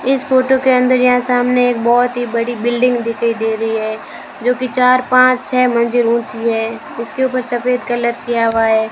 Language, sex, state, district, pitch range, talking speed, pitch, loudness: Hindi, female, Rajasthan, Bikaner, 230-250 Hz, 195 wpm, 240 Hz, -15 LUFS